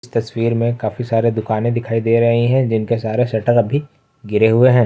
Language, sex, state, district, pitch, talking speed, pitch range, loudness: Hindi, male, Jharkhand, Ranchi, 115 Hz, 195 wpm, 110-120 Hz, -17 LUFS